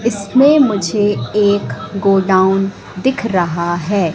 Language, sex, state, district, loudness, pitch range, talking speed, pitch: Hindi, female, Madhya Pradesh, Katni, -14 LUFS, 190-220 Hz, 100 wpm, 200 Hz